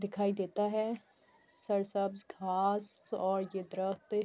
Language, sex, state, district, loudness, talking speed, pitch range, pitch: Urdu, female, Andhra Pradesh, Anantapur, -35 LUFS, 100 wpm, 190-210 Hz, 200 Hz